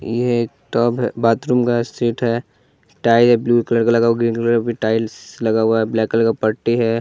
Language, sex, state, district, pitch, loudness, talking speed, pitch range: Hindi, male, Bihar, West Champaran, 115 Hz, -17 LUFS, 240 wpm, 115-120 Hz